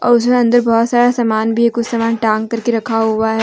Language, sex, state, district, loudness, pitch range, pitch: Hindi, female, Jharkhand, Deoghar, -14 LUFS, 225-240 Hz, 230 Hz